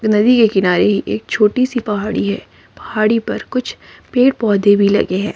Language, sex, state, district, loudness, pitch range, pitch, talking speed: Hindi, female, Himachal Pradesh, Shimla, -15 LUFS, 205-235 Hz, 210 Hz, 180 wpm